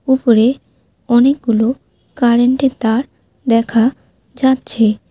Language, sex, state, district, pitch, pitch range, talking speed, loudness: Bengali, female, West Bengal, Alipurduar, 240 Hz, 230-260 Hz, 70 wpm, -14 LUFS